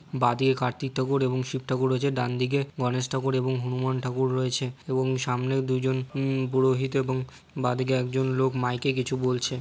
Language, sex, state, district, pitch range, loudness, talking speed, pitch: Bengali, male, West Bengal, Jhargram, 125-130 Hz, -27 LUFS, 170 wpm, 130 Hz